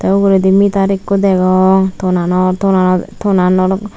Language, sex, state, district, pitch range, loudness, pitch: Chakma, female, Tripura, Unakoti, 185-195 Hz, -12 LUFS, 190 Hz